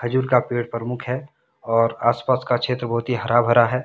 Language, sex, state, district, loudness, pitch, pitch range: Hindi, male, Jharkhand, Deoghar, -21 LUFS, 120 Hz, 120-125 Hz